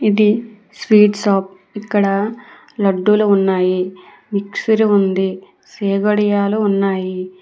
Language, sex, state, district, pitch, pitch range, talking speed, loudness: Telugu, female, Telangana, Hyderabad, 200 Hz, 190-210 Hz, 80 wpm, -16 LUFS